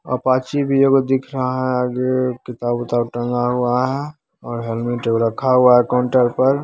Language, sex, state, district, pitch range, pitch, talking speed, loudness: Maithili, male, Bihar, Begusarai, 120-130 Hz, 125 Hz, 200 wpm, -18 LUFS